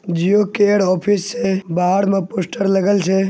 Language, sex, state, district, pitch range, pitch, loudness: Angika, male, Bihar, Begusarai, 185-205 Hz, 195 Hz, -17 LUFS